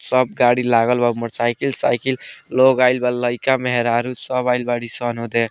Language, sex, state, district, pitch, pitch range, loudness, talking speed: Bhojpuri, male, Bihar, Muzaffarpur, 125 Hz, 120-125 Hz, -18 LUFS, 175 wpm